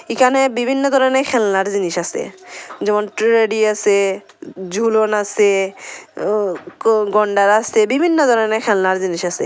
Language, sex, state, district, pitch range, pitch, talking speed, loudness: Bengali, female, Tripura, Unakoti, 200-230 Hz, 210 Hz, 125 wpm, -16 LUFS